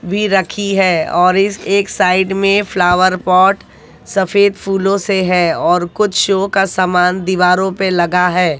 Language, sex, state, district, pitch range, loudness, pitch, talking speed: Hindi, female, Haryana, Jhajjar, 180-195 Hz, -13 LUFS, 190 Hz, 160 wpm